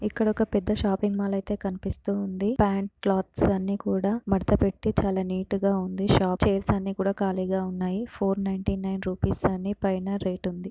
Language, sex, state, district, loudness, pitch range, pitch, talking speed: Telugu, female, Telangana, Karimnagar, -27 LUFS, 190-200 Hz, 195 Hz, 170 wpm